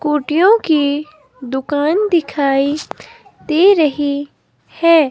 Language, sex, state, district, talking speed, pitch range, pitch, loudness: Hindi, female, Himachal Pradesh, Shimla, 80 wpm, 285-335 Hz, 300 Hz, -15 LUFS